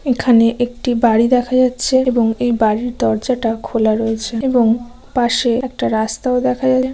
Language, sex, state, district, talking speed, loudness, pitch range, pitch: Bengali, female, West Bengal, Jalpaiguri, 155 wpm, -16 LUFS, 225-255 Hz, 245 Hz